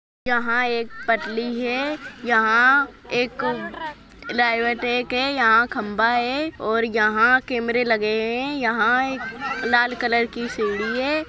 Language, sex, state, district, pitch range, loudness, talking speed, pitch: Hindi, male, Maharashtra, Nagpur, 230-255 Hz, -21 LUFS, 125 wpm, 240 Hz